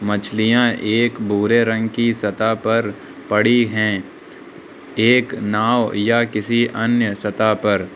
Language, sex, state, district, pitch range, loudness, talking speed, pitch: Hindi, male, Uttar Pradesh, Lucknow, 105-115 Hz, -18 LUFS, 120 wpm, 110 Hz